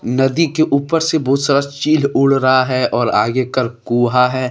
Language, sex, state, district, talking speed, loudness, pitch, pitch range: Hindi, male, Jharkhand, Deoghar, 160 wpm, -15 LUFS, 130 Hz, 125-140 Hz